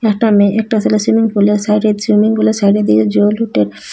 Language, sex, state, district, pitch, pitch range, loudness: Bengali, female, Assam, Hailakandi, 210 Hz, 200-220 Hz, -12 LUFS